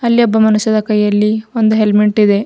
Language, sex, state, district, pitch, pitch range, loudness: Kannada, female, Karnataka, Bidar, 215 Hz, 210-220 Hz, -12 LUFS